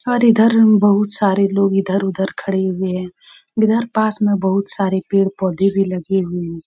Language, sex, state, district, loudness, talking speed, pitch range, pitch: Hindi, female, Uttar Pradesh, Muzaffarnagar, -16 LUFS, 190 wpm, 190-210 Hz, 195 Hz